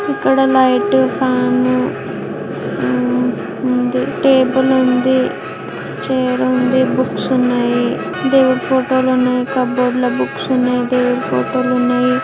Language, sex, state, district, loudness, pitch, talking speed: Telugu, female, Telangana, Karimnagar, -15 LUFS, 250 Hz, 115 wpm